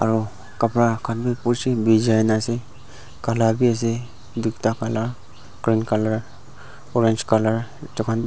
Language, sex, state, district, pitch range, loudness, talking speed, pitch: Nagamese, male, Nagaland, Dimapur, 110-120 Hz, -22 LUFS, 125 wpm, 115 Hz